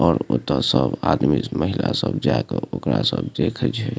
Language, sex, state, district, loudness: Maithili, male, Bihar, Supaul, -21 LUFS